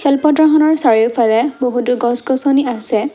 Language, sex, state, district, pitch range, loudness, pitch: Assamese, female, Assam, Kamrup Metropolitan, 240-290 Hz, -13 LUFS, 250 Hz